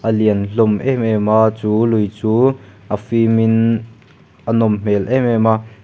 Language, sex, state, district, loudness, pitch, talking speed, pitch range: Mizo, male, Mizoram, Aizawl, -16 LUFS, 110 Hz, 175 wpm, 105-115 Hz